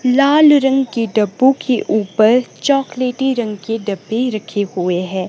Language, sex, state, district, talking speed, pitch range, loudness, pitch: Hindi, female, Himachal Pradesh, Shimla, 145 wpm, 210-265 Hz, -15 LUFS, 230 Hz